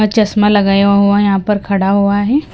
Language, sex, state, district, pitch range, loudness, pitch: Hindi, female, Himachal Pradesh, Shimla, 200-210 Hz, -12 LUFS, 200 Hz